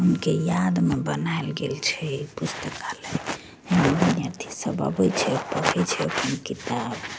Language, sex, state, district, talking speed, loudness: Maithili, female, Bihar, Begusarai, 135 wpm, -25 LUFS